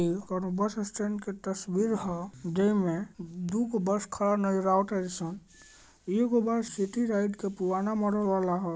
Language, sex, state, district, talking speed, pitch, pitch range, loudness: Bhojpuri, male, Bihar, Gopalganj, 170 wpm, 195 Hz, 185-210 Hz, -30 LUFS